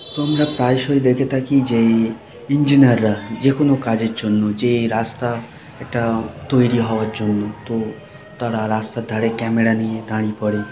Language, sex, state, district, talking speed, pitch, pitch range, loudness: Bengali, male, West Bengal, Jhargram, 130 wpm, 115 Hz, 110-130 Hz, -18 LUFS